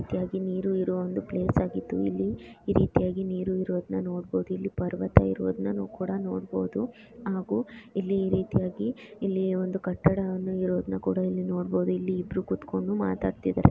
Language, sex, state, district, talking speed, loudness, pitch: Kannada, female, Karnataka, Chamarajanagar, 140 wpm, -29 LUFS, 180 Hz